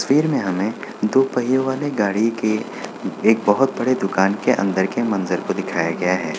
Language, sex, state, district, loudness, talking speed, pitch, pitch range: Hindi, male, Bihar, Kishanganj, -20 LUFS, 190 wpm, 110 Hz, 95-130 Hz